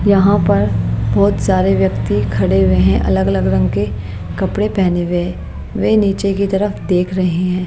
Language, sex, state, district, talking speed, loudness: Hindi, female, Maharashtra, Mumbai Suburban, 170 wpm, -15 LUFS